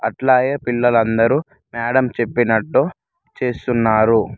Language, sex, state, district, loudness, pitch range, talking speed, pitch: Telugu, male, Telangana, Mahabubabad, -17 LUFS, 115-130 Hz, 80 wpm, 120 Hz